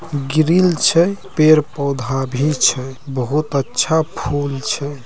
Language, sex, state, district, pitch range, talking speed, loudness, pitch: Maithili, male, Bihar, Purnia, 135-160 Hz, 105 wpm, -17 LUFS, 145 Hz